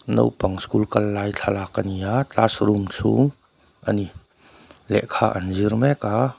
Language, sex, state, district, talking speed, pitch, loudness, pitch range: Mizo, male, Mizoram, Aizawl, 150 wpm, 105 Hz, -22 LUFS, 100-115 Hz